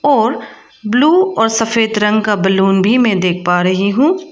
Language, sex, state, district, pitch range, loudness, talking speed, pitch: Hindi, female, Arunachal Pradesh, Lower Dibang Valley, 195-250 Hz, -13 LUFS, 180 wpm, 220 Hz